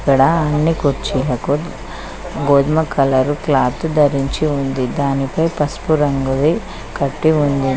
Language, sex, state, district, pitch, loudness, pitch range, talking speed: Telugu, female, Telangana, Mahabubabad, 140 Hz, -17 LUFS, 135-155 Hz, 110 wpm